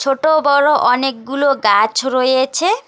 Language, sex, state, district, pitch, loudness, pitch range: Bengali, female, West Bengal, Alipurduar, 270 Hz, -14 LUFS, 255-290 Hz